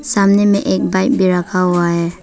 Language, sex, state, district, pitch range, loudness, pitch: Hindi, female, Arunachal Pradesh, Papum Pare, 175-200 Hz, -14 LUFS, 185 Hz